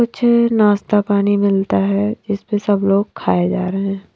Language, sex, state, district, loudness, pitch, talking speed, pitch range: Hindi, female, Bihar, Katihar, -16 LUFS, 200 Hz, 190 wpm, 190-210 Hz